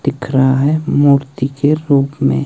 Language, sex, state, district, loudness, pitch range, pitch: Hindi, male, Himachal Pradesh, Shimla, -14 LUFS, 130-145 Hz, 140 Hz